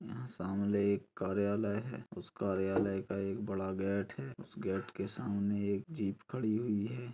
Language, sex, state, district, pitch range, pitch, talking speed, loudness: Hindi, male, Chhattisgarh, Kabirdham, 95-110 Hz, 100 Hz, 175 wpm, -36 LUFS